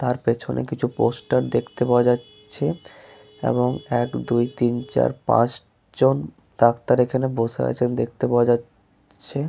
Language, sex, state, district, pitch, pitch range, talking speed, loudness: Bengali, male, West Bengal, Paschim Medinipur, 120 Hz, 105-125 Hz, 140 wpm, -22 LUFS